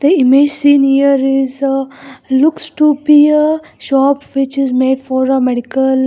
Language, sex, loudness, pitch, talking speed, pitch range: English, female, -12 LUFS, 275 Hz, 170 wpm, 265-285 Hz